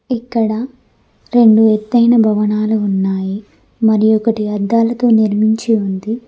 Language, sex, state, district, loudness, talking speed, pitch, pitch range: Telugu, female, Telangana, Mahabubabad, -14 LUFS, 95 wpm, 220 Hz, 210-230 Hz